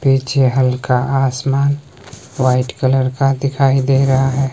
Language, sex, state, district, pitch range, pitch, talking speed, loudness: Hindi, male, Himachal Pradesh, Shimla, 130-135 Hz, 135 Hz, 130 wpm, -15 LUFS